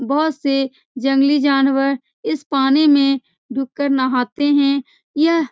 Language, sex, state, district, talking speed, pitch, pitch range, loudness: Hindi, female, Bihar, Saran, 130 wpm, 275 Hz, 270-290 Hz, -17 LUFS